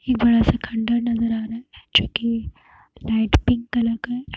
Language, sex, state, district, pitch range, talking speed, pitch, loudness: Hindi, female, Uttar Pradesh, Hamirpur, 230-235 Hz, 205 wpm, 230 Hz, -21 LUFS